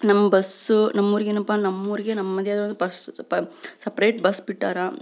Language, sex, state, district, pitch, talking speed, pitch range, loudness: Kannada, female, Karnataka, Belgaum, 205 Hz, 145 wpm, 190-210 Hz, -23 LUFS